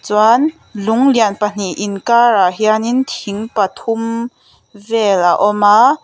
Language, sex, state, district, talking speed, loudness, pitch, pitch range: Mizo, female, Mizoram, Aizawl, 120 wpm, -14 LUFS, 215 Hz, 205-230 Hz